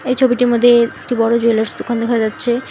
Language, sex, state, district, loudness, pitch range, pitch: Bengali, female, West Bengal, Alipurduar, -15 LUFS, 230-245 Hz, 235 Hz